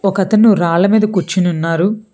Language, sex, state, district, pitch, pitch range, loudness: Telugu, female, Telangana, Hyderabad, 195 Hz, 175-210 Hz, -13 LUFS